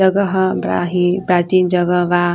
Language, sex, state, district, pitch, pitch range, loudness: Bajjika, female, Bihar, Vaishali, 180 Hz, 175-190 Hz, -16 LUFS